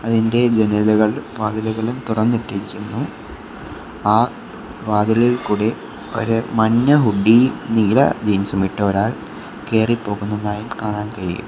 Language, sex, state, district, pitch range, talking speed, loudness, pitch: Malayalam, male, Kerala, Kollam, 105-115 Hz, 85 wpm, -18 LUFS, 110 Hz